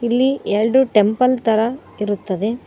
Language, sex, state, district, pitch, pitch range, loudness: Kannada, female, Karnataka, Koppal, 225 Hz, 210-255 Hz, -17 LUFS